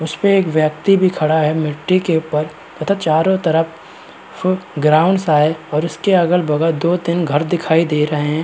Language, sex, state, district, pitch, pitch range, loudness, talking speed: Hindi, male, Uttar Pradesh, Varanasi, 160 Hz, 155-180 Hz, -16 LUFS, 185 wpm